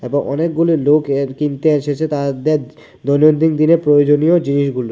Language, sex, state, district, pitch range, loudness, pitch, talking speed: Bengali, male, Tripura, West Tripura, 140-155 Hz, -15 LUFS, 145 Hz, 135 wpm